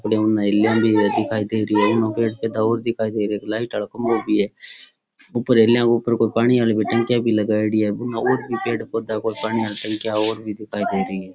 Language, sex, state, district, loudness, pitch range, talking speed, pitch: Rajasthani, male, Rajasthan, Churu, -20 LUFS, 105-115 Hz, 225 wpm, 110 Hz